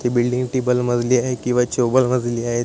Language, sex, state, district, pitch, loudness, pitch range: Marathi, male, Maharashtra, Chandrapur, 125 Hz, -19 LUFS, 120-125 Hz